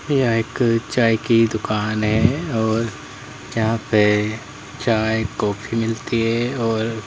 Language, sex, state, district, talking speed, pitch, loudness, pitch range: Hindi, male, Uttar Pradesh, Lalitpur, 120 wpm, 115 Hz, -20 LUFS, 110-115 Hz